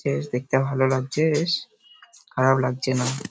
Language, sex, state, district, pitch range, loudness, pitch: Bengali, male, West Bengal, Paschim Medinipur, 130-150 Hz, -23 LUFS, 130 Hz